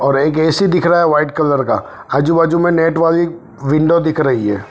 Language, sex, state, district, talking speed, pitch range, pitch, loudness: Hindi, male, Punjab, Fazilka, 240 wpm, 145-170 Hz, 160 Hz, -14 LUFS